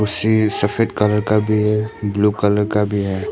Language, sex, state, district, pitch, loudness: Hindi, male, Arunachal Pradesh, Papum Pare, 105 Hz, -17 LUFS